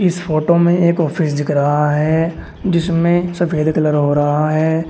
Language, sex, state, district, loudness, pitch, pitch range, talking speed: Hindi, male, Uttar Pradesh, Shamli, -15 LUFS, 160 Hz, 150-170 Hz, 170 wpm